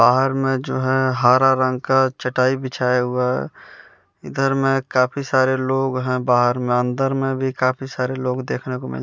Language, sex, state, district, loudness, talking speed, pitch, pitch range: Hindi, male, Bihar, West Champaran, -19 LUFS, 180 wpm, 130 Hz, 125-135 Hz